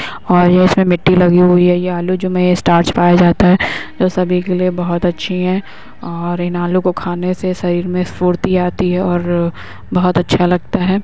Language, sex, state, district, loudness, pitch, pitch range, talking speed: Hindi, female, Uttar Pradesh, Hamirpur, -14 LUFS, 180 Hz, 175-185 Hz, 200 wpm